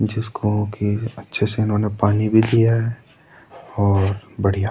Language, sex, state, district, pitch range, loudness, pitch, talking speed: Hindi, male, Uttarakhand, Tehri Garhwal, 105-115 Hz, -20 LUFS, 110 Hz, 140 wpm